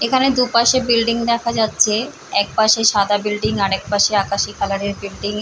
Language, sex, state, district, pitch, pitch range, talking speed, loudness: Bengali, female, West Bengal, Paschim Medinipur, 215 Hz, 200-235 Hz, 190 wpm, -17 LUFS